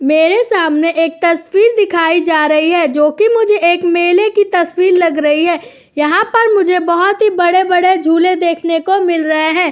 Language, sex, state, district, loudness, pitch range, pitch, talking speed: Hindi, female, Uttar Pradesh, Jyotiba Phule Nagar, -12 LUFS, 325-380 Hz, 345 Hz, 180 wpm